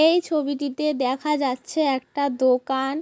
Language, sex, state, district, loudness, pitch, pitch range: Bengali, female, West Bengal, Kolkata, -23 LUFS, 280 Hz, 260-300 Hz